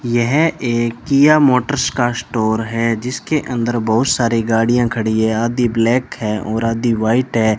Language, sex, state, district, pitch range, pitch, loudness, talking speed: Hindi, male, Rajasthan, Bikaner, 115-125 Hz, 120 Hz, -16 LUFS, 165 wpm